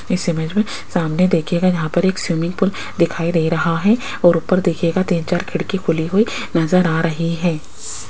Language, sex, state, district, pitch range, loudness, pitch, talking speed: Hindi, female, Rajasthan, Jaipur, 165-185 Hz, -18 LUFS, 175 Hz, 195 wpm